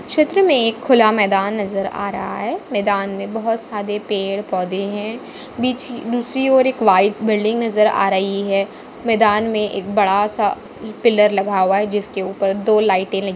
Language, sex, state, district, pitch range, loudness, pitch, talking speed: Hindi, female, Maharashtra, Dhule, 195-225 Hz, -18 LUFS, 210 Hz, 175 wpm